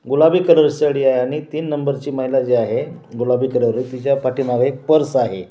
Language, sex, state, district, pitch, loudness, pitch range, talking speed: Marathi, male, Maharashtra, Washim, 135 Hz, -17 LUFS, 130-150 Hz, 195 wpm